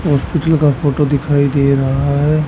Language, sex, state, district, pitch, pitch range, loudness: Hindi, male, Haryana, Rohtak, 145 Hz, 140-150 Hz, -14 LUFS